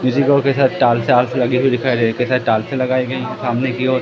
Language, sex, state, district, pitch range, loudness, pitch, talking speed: Hindi, male, Madhya Pradesh, Katni, 125-130 Hz, -16 LUFS, 130 Hz, 295 wpm